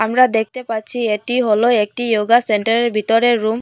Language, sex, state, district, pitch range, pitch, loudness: Bengali, female, Assam, Hailakandi, 215-240 Hz, 225 Hz, -16 LUFS